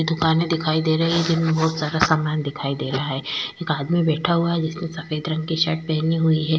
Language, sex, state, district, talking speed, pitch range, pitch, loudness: Hindi, female, Goa, North and South Goa, 235 wpm, 155-165 Hz, 160 Hz, -21 LUFS